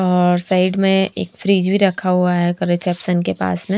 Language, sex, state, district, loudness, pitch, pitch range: Hindi, female, Punjab, Fazilka, -17 LUFS, 180 Hz, 175-190 Hz